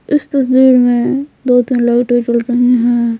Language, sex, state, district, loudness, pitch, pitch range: Hindi, female, Bihar, Patna, -12 LUFS, 245 Hz, 240-260 Hz